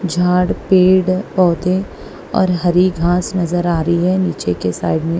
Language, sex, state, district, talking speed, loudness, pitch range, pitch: Hindi, female, Punjab, Kapurthala, 160 wpm, -15 LUFS, 170-185 Hz, 180 Hz